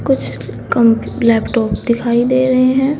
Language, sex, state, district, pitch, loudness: Hindi, female, Uttar Pradesh, Saharanpur, 235 Hz, -14 LUFS